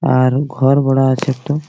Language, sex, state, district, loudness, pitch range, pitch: Bengali, male, West Bengal, Malda, -15 LUFS, 130-145 Hz, 135 Hz